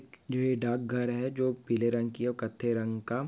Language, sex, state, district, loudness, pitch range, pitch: Hindi, male, Maharashtra, Nagpur, -31 LUFS, 115-125 Hz, 120 Hz